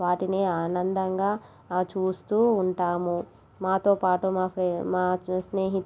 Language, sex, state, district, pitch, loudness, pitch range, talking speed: Telugu, female, Telangana, Nalgonda, 185 Hz, -26 LUFS, 180-190 Hz, 115 wpm